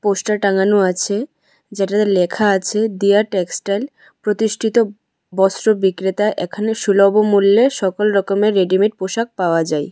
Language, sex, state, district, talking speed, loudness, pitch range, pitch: Bengali, female, Tripura, West Tripura, 120 wpm, -16 LUFS, 190-215 Hz, 200 Hz